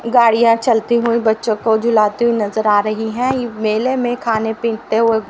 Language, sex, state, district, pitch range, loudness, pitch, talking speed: Hindi, female, Haryana, Rohtak, 220-235 Hz, -16 LUFS, 225 Hz, 180 wpm